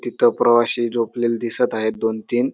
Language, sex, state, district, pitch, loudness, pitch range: Marathi, male, Maharashtra, Dhule, 120 Hz, -19 LUFS, 115-120 Hz